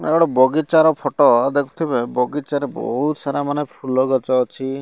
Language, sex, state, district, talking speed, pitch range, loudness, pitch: Odia, male, Odisha, Malkangiri, 150 wpm, 130-150 Hz, -18 LUFS, 145 Hz